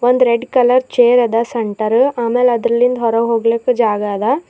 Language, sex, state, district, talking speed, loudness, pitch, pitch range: Kannada, female, Karnataka, Bidar, 160 wpm, -14 LUFS, 235 Hz, 230-250 Hz